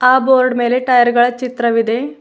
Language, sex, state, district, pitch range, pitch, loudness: Kannada, female, Karnataka, Bidar, 240-255 Hz, 250 Hz, -14 LUFS